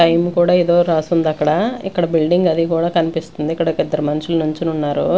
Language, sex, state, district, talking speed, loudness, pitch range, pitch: Telugu, female, Andhra Pradesh, Sri Satya Sai, 185 wpm, -17 LUFS, 155-175 Hz, 165 Hz